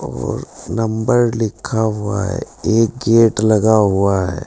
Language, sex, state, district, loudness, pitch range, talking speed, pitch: Hindi, male, Uttar Pradesh, Saharanpur, -16 LUFS, 105-115 Hz, 135 wpm, 110 Hz